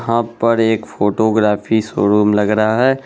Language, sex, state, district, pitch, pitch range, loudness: Hindi, male, Bihar, Araria, 110 Hz, 105-115 Hz, -15 LUFS